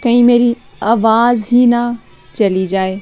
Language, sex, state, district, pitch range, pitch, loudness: Hindi, female, Chandigarh, Chandigarh, 210-240 Hz, 235 Hz, -13 LUFS